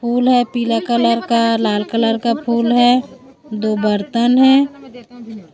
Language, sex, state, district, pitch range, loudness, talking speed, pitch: Hindi, female, Chhattisgarh, Raipur, 230-245 Hz, -15 LUFS, 140 wpm, 235 Hz